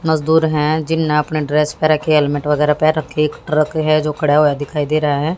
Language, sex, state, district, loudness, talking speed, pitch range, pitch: Hindi, female, Haryana, Jhajjar, -16 LUFS, 255 wpm, 150-155 Hz, 150 Hz